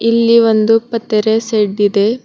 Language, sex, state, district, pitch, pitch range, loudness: Kannada, female, Karnataka, Bidar, 225 Hz, 215-230 Hz, -13 LUFS